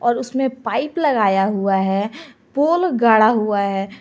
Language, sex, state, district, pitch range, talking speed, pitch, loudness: Hindi, female, Jharkhand, Garhwa, 200-265 Hz, 150 wpm, 225 Hz, -18 LUFS